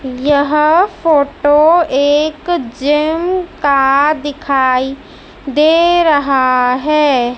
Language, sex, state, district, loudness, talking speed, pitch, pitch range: Hindi, female, Madhya Pradesh, Dhar, -12 LUFS, 75 wpm, 290 Hz, 270-315 Hz